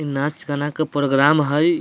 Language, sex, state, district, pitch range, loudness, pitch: Bajjika, male, Bihar, Vaishali, 145-155 Hz, -19 LUFS, 145 Hz